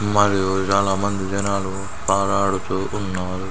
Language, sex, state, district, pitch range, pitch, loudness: Telugu, male, Andhra Pradesh, Sri Satya Sai, 95-100 Hz, 95 Hz, -21 LUFS